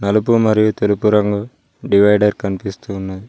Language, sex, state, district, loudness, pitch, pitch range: Telugu, male, Telangana, Mahabubabad, -16 LUFS, 105 Hz, 100-110 Hz